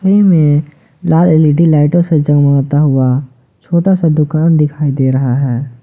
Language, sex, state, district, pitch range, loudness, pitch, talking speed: Hindi, male, Jharkhand, Ranchi, 135-160 Hz, -11 LUFS, 150 Hz, 155 wpm